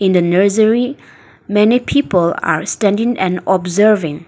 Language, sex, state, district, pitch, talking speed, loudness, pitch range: English, female, Nagaland, Dimapur, 205 Hz, 110 wpm, -14 LUFS, 180-220 Hz